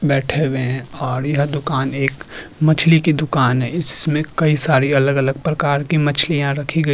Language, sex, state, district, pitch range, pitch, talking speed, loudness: Hindi, male, Uttarakhand, Tehri Garhwal, 135-155 Hz, 145 Hz, 190 wpm, -16 LUFS